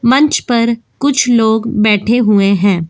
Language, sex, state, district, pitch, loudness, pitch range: Hindi, female, Goa, North and South Goa, 230 Hz, -12 LUFS, 210-245 Hz